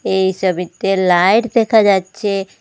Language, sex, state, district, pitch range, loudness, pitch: Bengali, female, Assam, Hailakandi, 185-205 Hz, -15 LUFS, 195 Hz